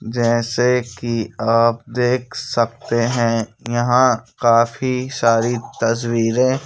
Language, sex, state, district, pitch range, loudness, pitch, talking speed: Hindi, male, Madhya Pradesh, Bhopal, 115-125 Hz, -18 LUFS, 120 Hz, 90 wpm